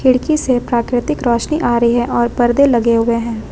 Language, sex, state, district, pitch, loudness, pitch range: Hindi, female, Jharkhand, Ranchi, 240 Hz, -15 LUFS, 235-260 Hz